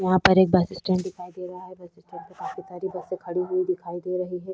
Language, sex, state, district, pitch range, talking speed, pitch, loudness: Hindi, female, Chhattisgarh, Korba, 180-185 Hz, 265 wpm, 185 Hz, -25 LUFS